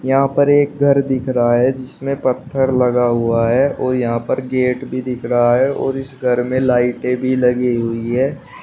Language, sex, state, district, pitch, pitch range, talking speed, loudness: Hindi, male, Uttar Pradesh, Shamli, 130 Hz, 125-135 Hz, 200 wpm, -16 LUFS